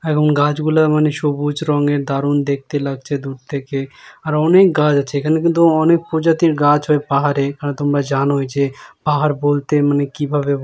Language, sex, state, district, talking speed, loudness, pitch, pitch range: Bengali, male, West Bengal, Jalpaiguri, 170 wpm, -16 LUFS, 145 Hz, 140-155 Hz